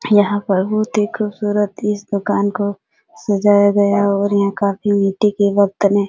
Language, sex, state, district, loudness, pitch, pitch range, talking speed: Hindi, female, Bihar, Supaul, -16 LUFS, 205 Hz, 200-205 Hz, 175 wpm